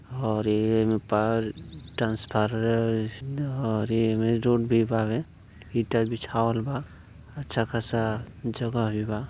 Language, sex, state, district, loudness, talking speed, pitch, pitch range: Bhojpuri, male, Uttar Pradesh, Gorakhpur, -26 LUFS, 115 wpm, 115 Hz, 110-115 Hz